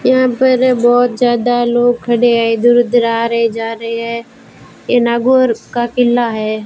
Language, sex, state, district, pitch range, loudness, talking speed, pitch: Hindi, female, Rajasthan, Bikaner, 230-245 Hz, -13 LUFS, 180 wpm, 240 Hz